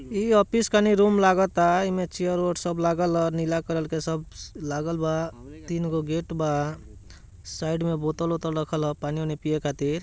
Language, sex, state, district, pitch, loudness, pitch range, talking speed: Bhojpuri, male, Bihar, Gopalganj, 165 Hz, -25 LUFS, 155-175 Hz, 190 wpm